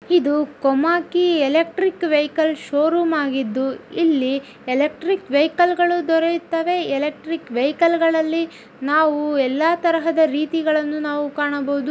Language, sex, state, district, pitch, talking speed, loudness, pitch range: Kannada, female, Karnataka, Dharwad, 310 Hz, 75 wpm, -19 LUFS, 290-335 Hz